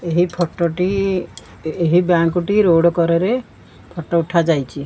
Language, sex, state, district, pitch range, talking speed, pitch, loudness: Odia, female, Odisha, Khordha, 165-180 Hz, 135 wpm, 170 Hz, -17 LUFS